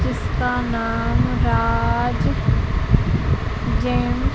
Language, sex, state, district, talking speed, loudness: Hindi, female, Madhya Pradesh, Katni, 70 wpm, -20 LUFS